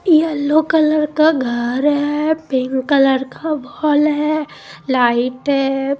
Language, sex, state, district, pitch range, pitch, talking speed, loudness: Hindi, female, Odisha, Malkangiri, 265-310 Hz, 290 Hz, 120 wpm, -16 LUFS